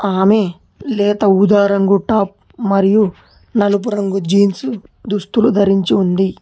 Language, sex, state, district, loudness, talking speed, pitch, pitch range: Telugu, male, Telangana, Hyderabad, -15 LUFS, 110 wpm, 200 Hz, 195-210 Hz